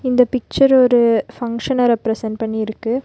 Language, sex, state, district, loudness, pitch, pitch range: Tamil, female, Tamil Nadu, Nilgiris, -17 LUFS, 240 Hz, 225-255 Hz